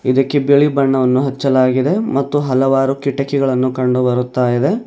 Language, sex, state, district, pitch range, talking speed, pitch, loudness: Kannada, male, Karnataka, Bidar, 130-140 Hz, 110 wpm, 135 Hz, -15 LUFS